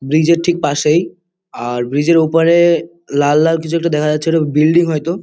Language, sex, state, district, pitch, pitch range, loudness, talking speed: Bengali, male, West Bengal, Kolkata, 165 Hz, 150-170 Hz, -14 LUFS, 185 wpm